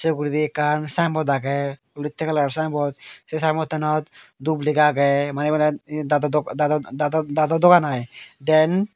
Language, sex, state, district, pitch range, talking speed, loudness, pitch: Chakma, male, Tripura, Dhalai, 145-155 Hz, 155 wpm, -21 LUFS, 150 Hz